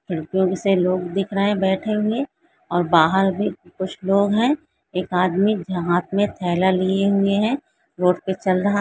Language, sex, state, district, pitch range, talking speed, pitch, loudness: Hindi, female, West Bengal, Jalpaiguri, 180-205 Hz, 185 wpm, 190 Hz, -20 LUFS